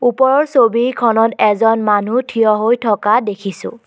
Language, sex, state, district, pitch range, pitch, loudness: Assamese, female, Assam, Kamrup Metropolitan, 210-245 Hz, 225 Hz, -14 LUFS